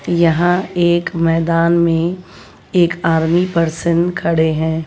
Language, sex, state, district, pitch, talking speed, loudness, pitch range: Hindi, female, Bihar, West Champaran, 170 Hz, 110 wpm, -15 LUFS, 165-175 Hz